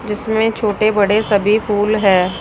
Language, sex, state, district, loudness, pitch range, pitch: Hindi, female, Rajasthan, Jaipur, -15 LUFS, 205-220 Hz, 210 Hz